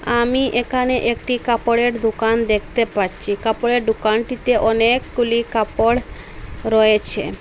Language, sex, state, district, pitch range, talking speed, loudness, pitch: Bengali, female, Assam, Hailakandi, 220-240 Hz, 95 wpm, -18 LUFS, 235 Hz